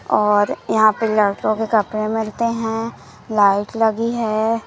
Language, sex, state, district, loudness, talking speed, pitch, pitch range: Hindi, female, Madhya Pradesh, Umaria, -18 LUFS, 140 wpm, 220 Hz, 210-225 Hz